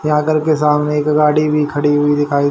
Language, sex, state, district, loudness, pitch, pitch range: Hindi, male, Haryana, Rohtak, -14 LUFS, 150 Hz, 145-150 Hz